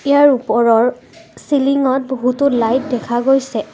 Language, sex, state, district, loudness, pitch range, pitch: Assamese, female, Assam, Kamrup Metropolitan, -15 LUFS, 235-275 Hz, 260 Hz